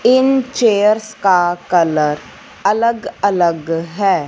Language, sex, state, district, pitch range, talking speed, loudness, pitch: Hindi, female, Punjab, Fazilka, 165-225 Hz, 100 wpm, -15 LUFS, 195 Hz